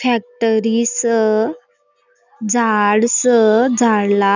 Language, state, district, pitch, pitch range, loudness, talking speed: Bhili, Maharashtra, Dhule, 220 Hz, 205-235 Hz, -15 LUFS, 80 wpm